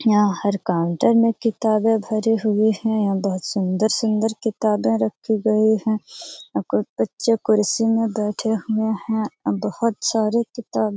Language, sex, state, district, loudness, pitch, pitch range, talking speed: Hindi, female, Bihar, Jamui, -21 LUFS, 220 Hz, 210-225 Hz, 140 wpm